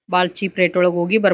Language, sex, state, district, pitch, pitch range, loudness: Kannada, female, Karnataka, Dharwad, 180 Hz, 180-195 Hz, -18 LUFS